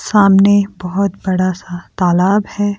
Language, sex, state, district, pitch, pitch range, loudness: Hindi, female, Himachal Pradesh, Shimla, 195 Hz, 185-200 Hz, -14 LUFS